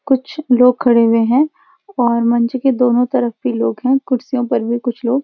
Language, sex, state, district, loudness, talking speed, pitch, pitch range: Hindi, female, Uttarakhand, Uttarkashi, -15 LUFS, 215 wpm, 250 Hz, 235-265 Hz